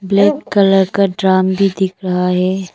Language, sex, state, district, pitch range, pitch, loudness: Hindi, female, Arunachal Pradesh, Papum Pare, 185-195 Hz, 190 Hz, -14 LUFS